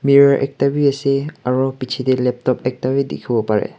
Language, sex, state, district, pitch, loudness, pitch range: Nagamese, male, Nagaland, Kohima, 135 Hz, -18 LUFS, 125-140 Hz